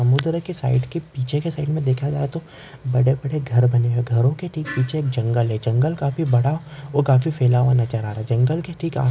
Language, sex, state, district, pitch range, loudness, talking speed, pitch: Hindi, male, Maharashtra, Chandrapur, 125-150 Hz, -21 LUFS, 230 wpm, 135 Hz